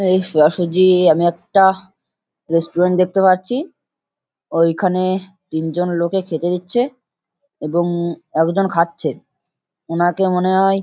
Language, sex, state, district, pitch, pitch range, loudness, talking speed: Bengali, male, West Bengal, Kolkata, 180 Hz, 170-190 Hz, -17 LUFS, 100 wpm